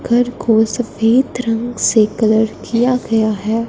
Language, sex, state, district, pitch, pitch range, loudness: Hindi, female, Punjab, Fazilka, 230 Hz, 220-240 Hz, -15 LUFS